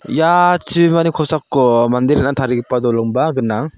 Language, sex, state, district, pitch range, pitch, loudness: Garo, male, Meghalaya, South Garo Hills, 125-165 Hz, 140 Hz, -14 LUFS